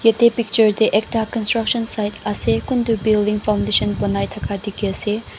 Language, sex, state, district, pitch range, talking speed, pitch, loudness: Nagamese, female, Mizoram, Aizawl, 195-225 Hz, 155 wpm, 215 Hz, -19 LUFS